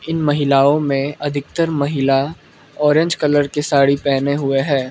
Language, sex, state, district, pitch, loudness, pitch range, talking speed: Hindi, male, Arunachal Pradesh, Lower Dibang Valley, 145 Hz, -17 LUFS, 140-150 Hz, 145 wpm